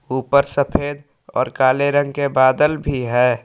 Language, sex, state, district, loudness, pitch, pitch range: Hindi, male, Jharkhand, Palamu, -18 LUFS, 140 Hz, 130-145 Hz